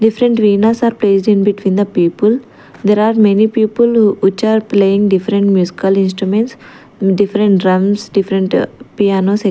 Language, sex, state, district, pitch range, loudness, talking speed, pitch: English, female, Chandigarh, Chandigarh, 195-220 Hz, -13 LUFS, 130 wpm, 205 Hz